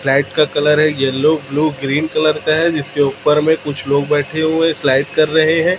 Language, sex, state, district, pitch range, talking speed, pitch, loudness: Hindi, male, Chhattisgarh, Raipur, 140-155 Hz, 215 wpm, 150 Hz, -15 LUFS